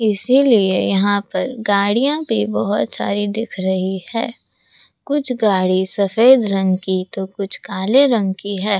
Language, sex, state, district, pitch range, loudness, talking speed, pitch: Hindi, female, Rajasthan, Jaipur, 190-230 Hz, -17 LUFS, 145 wpm, 200 Hz